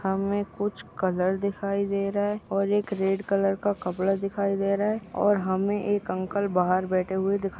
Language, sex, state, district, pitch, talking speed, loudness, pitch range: Hindi, female, Maharashtra, Solapur, 195 Hz, 195 wpm, -26 LUFS, 190-205 Hz